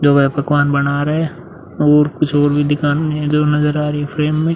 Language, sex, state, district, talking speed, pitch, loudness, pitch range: Hindi, male, Uttar Pradesh, Muzaffarnagar, 235 wpm, 150 Hz, -15 LUFS, 145-150 Hz